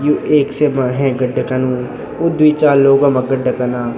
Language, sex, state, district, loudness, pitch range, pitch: Garhwali, male, Uttarakhand, Tehri Garhwal, -14 LUFS, 125-145 Hz, 135 Hz